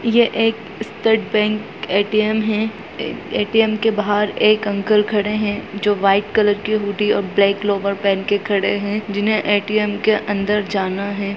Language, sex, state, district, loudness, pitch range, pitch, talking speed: Hindi, male, Bihar, Muzaffarpur, -18 LUFS, 200-215 Hz, 210 Hz, 165 wpm